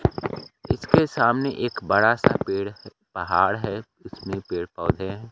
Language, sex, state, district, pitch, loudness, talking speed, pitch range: Hindi, male, Bihar, Kaimur, 115 Hz, -23 LUFS, 135 wpm, 95-125 Hz